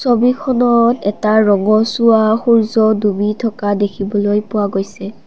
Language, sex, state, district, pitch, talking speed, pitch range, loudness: Assamese, female, Assam, Kamrup Metropolitan, 215 Hz, 100 wpm, 205-230 Hz, -14 LUFS